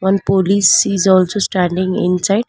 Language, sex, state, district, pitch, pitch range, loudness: English, female, Karnataka, Bangalore, 190 Hz, 185-200 Hz, -14 LUFS